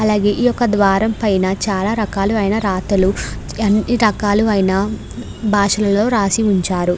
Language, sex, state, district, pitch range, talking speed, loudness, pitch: Telugu, female, Andhra Pradesh, Krishna, 195-215 Hz, 120 wpm, -16 LUFS, 205 Hz